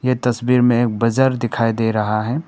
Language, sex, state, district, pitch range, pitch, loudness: Hindi, male, Arunachal Pradesh, Papum Pare, 115-125 Hz, 120 Hz, -17 LUFS